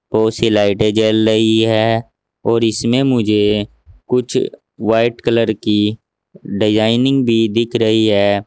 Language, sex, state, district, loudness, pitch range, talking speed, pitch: Hindi, male, Uttar Pradesh, Saharanpur, -15 LUFS, 105-115 Hz, 125 wpm, 110 Hz